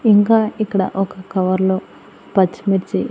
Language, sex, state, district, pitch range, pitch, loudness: Telugu, female, Andhra Pradesh, Annamaya, 190-210 Hz, 195 Hz, -18 LUFS